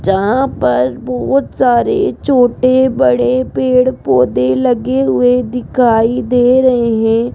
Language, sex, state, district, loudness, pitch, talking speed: Hindi, female, Rajasthan, Jaipur, -12 LUFS, 235 Hz, 115 wpm